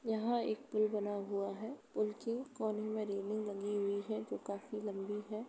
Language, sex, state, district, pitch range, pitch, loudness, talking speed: Hindi, female, Uttar Pradesh, Jalaun, 205-220 Hz, 215 Hz, -39 LUFS, 195 wpm